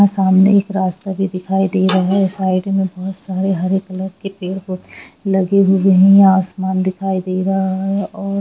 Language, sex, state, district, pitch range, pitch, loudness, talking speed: Hindi, female, Jharkhand, Jamtara, 185-195 Hz, 190 Hz, -16 LUFS, 195 wpm